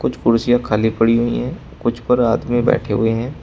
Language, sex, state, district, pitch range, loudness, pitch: Hindi, male, Uttar Pradesh, Shamli, 115-120 Hz, -17 LUFS, 115 Hz